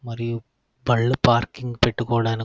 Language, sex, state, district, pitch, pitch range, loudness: Telugu, male, Andhra Pradesh, Krishna, 120 Hz, 115-120 Hz, -22 LUFS